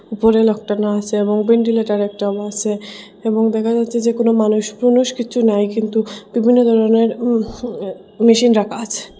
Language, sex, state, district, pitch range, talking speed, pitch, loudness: Bengali, female, Assam, Hailakandi, 210-230 Hz, 155 wpm, 220 Hz, -16 LUFS